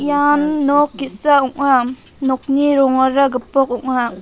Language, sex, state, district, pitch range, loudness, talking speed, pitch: Garo, female, Meghalaya, North Garo Hills, 260-290 Hz, -14 LUFS, 115 wpm, 275 Hz